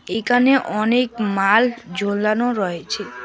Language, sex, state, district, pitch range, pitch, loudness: Bengali, male, West Bengal, Alipurduar, 200-245 Hz, 215 Hz, -19 LUFS